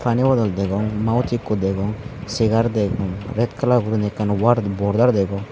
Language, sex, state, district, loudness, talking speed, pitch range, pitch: Chakma, male, Tripura, Unakoti, -20 LUFS, 150 wpm, 100-120 Hz, 110 Hz